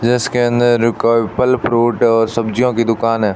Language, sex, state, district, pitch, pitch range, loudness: Hindi, male, Rajasthan, Bikaner, 115 Hz, 115-120 Hz, -14 LUFS